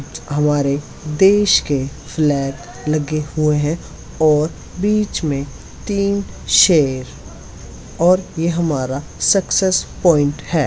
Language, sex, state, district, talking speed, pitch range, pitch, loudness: Hindi, female, Uttar Pradesh, Hamirpur, 100 wpm, 140-175 Hz, 150 Hz, -17 LUFS